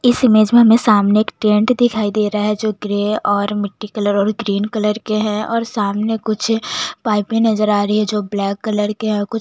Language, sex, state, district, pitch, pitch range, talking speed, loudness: Hindi, female, Chhattisgarh, Jashpur, 210 Hz, 205-220 Hz, 230 wpm, -16 LUFS